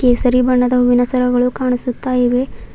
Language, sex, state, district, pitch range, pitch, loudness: Kannada, female, Karnataka, Bidar, 245-250 Hz, 250 Hz, -15 LUFS